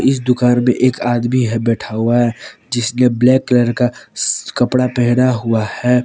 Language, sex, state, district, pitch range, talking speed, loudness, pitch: Hindi, male, Jharkhand, Palamu, 120-125 Hz, 170 wpm, -15 LUFS, 125 Hz